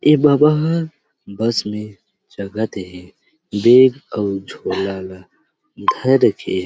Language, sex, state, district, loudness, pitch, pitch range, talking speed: Chhattisgarhi, male, Chhattisgarh, Rajnandgaon, -17 LUFS, 110 Hz, 95-150 Hz, 115 wpm